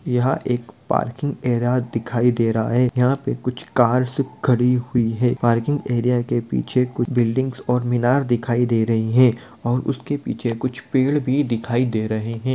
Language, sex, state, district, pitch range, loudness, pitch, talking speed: Hindi, male, Bihar, Gopalganj, 120-130 Hz, -20 LUFS, 125 Hz, 170 wpm